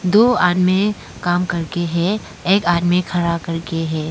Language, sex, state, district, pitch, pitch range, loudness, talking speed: Hindi, female, Arunachal Pradesh, Lower Dibang Valley, 175 Hz, 170-185 Hz, -18 LUFS, 145 wpm